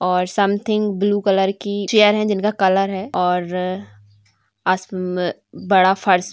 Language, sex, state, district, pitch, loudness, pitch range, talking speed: Hindi, female, Bihar, Saran, 190 Hz, -18 LUFS, 180-205 Hz, 135 wpm